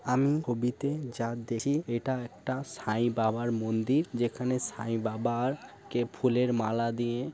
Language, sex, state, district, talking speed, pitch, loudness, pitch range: Bengali, male, West Bengal, Kolkata, 115 wpm, 120 Hz, -31 LUFS, 115-130 Hz